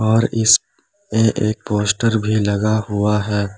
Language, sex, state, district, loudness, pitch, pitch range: Hindi, male, Jharkhand, Palamu, -17 LUFS, 110 Hz, 105-110 Hz